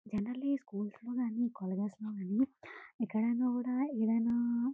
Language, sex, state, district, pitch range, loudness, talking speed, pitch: Telugu, female, Telangana, Karimnagar, 215-250 Hz, -35 LUFS, 90 wpm, 235 Hz